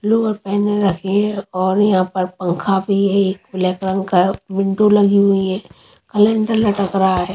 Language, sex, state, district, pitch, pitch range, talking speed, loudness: Hindi, female, Haryana, Rohtak, 195 Hz, 190-205 Hz, 170 wpm, -17 LUFS